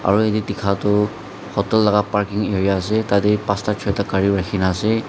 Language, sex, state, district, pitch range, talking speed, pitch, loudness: Nagamese, male, Nagaland, Dimapur, 100-105 Hz, 175 wpm, 100 Hz, -19 LUFS